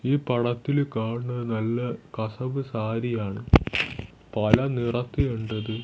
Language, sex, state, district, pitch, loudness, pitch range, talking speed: Malayalam, male, Kerala, Thiruvananthapuram, 120 Hz, -26 LUFS, 110-125 Hz, 90 wpm